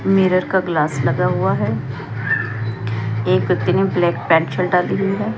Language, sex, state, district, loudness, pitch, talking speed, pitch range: Hindi, female, Chandigarh, Chandigarh, -18 LUFS, 140 Hz, 165 wpm, 115-180 Hz